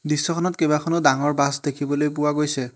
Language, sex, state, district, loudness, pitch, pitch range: Assamese, male, Assam, Hailakandi, -21 LUFS, 150 Hz, 145-150 Hz